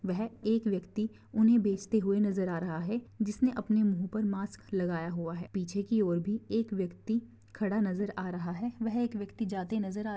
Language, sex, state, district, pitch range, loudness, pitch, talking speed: Hindi, female, Chhattisgarh, Raigarh, 185-220 Hz, -32 LUFS, 205 Hz, 205 wpm